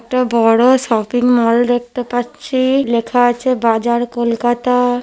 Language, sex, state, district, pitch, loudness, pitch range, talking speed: Bengali, female, West Bengal, North 24 Parganas, 245 Hz, -15 LUFS, 235-250 Hz, 120 wpm